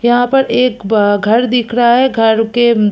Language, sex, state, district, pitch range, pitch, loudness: Hindi, female, Chhattisgarh, Kabirdham, 220-245 Hz, 240 Hz, -12 LUFS